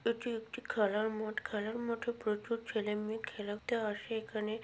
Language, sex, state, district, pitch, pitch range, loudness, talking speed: Bengali, female, West Bengal, Malda, 220 Hz, 215-230 Hz, -37 LUFS, 140 wpm